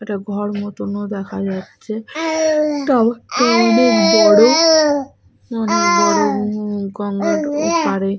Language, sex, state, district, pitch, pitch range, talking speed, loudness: Bengali, female, Jharkhand, Sahebganj, 220 Hz, 205-285 Hz, 95 wpm, -16 LUFS